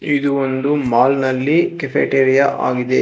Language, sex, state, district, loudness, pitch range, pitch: Kannada, male, Karnataka, Bangalore, -16 LUFS, 130-145 Hz, 135 Hz